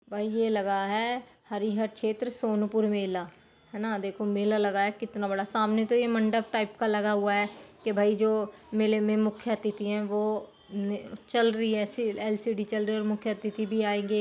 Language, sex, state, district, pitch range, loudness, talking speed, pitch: Hindi, female, Uttar Pradesh, Jyotiba Phule Nagar, 205-220 Hz, -29 LUFS, 195 wpm, 215 Hz